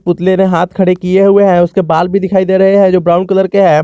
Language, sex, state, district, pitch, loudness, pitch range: Hindi, male, Jharkhand, Garhwa, 190 Hz, -10 LUFS, 175-195 Hz